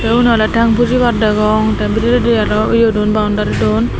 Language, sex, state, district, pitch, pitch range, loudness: Chakma, female, Tripura, Dhalai, 215 Hz, 210-230 Hz, -13 LUFS